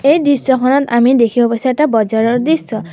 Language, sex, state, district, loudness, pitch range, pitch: Assamese, female, Assam, Sonitpur, -13 LUFS, 230-280 Hz, 250 Hz